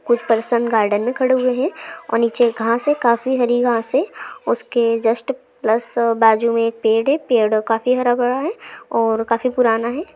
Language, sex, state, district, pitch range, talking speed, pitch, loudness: Hindi, female, Jharkhand, Sahebganj, 230-255 Hz, 175 wpm, 235 Hz, -18 LUFS